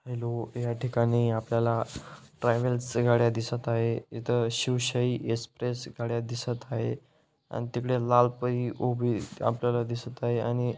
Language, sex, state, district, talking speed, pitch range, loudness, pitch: Marathi, male, Maharashtra, Dhule, 135 wpm, 115-125 Hz, -29 LUFS, 120 Hz